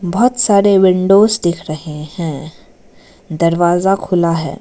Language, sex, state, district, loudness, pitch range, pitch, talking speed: Hindi, female, Arunachal Pradesh, Lower Dibang Valley, -13 LUFS, 165-195 Hz, 175 Hz, 115 wpm